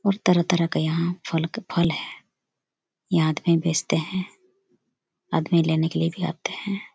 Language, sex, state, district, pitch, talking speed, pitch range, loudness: Hindi, female, Chhattisgarh, Bastar, 170 Hz, 155 wpm, 165-185 Hz, -24 LUFS